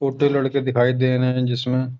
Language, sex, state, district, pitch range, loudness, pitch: Hindi, male, Uttar Pradesh, Hamirpur, 125-135 Hz, -20 LUFS, 130 Hz